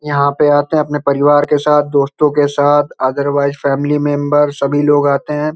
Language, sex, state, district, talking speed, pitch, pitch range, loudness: Hindi, male, Uttar Pradesh, Hamirpur, 195 wpm, 145 Hz, 140-150 Hz, -13 LUFS